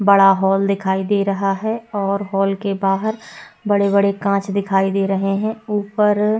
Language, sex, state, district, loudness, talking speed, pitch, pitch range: Hindi, female, Uttar Pradesh, Etah, -18 LUFS, 160 wpm, 200 Hz, 195-210 Hz